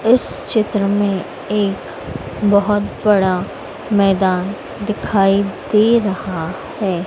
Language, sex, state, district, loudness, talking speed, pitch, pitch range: Hindi, female, Madhya Pradesh, Dhar, -17 LUFS, 95 wpm, 200 Hz, 190-210 Hz